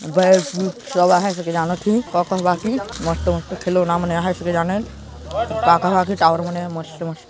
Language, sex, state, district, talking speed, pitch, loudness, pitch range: Hindi, male, Chhattisgarh, Jashpur, 180 wpm, 180 Hz, -19 LUFS, 170-190 Hz